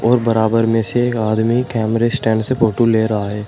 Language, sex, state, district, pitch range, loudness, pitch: Hindi, male, Uttar Pradesh, Shamli, 110-120 Hz, -16 LUFS, 115 Hz